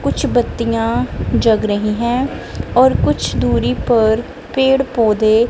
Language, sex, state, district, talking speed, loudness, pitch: Hindi, female, Punjab, Kapurthala, 120 wpm, -16 LUFS, 225 Hz